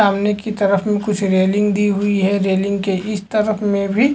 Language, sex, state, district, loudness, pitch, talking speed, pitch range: Hindi, male, Chhattisgarh, Rajnandgaon, -17 LUFS, 205 Hz, 200 wpm, 195-210 Hz